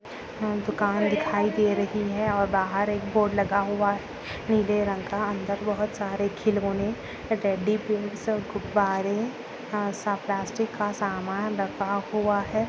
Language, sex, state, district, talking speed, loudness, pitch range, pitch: Hindi, female, Uttar Pradesh, Budaun, 130 wpm, -27 LUFS, 200-210 Hz, 205 Hz